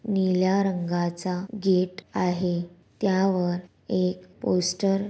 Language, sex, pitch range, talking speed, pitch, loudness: Marathi, female, 180-195 Hz, 120 wpm, 185 Hz, -26 LUFS